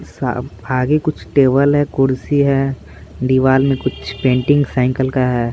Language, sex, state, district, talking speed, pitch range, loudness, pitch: Hindi, male, Bihar, Patna, 140 wpm, 130-140 Hz, -16 LUFS, 130 Hz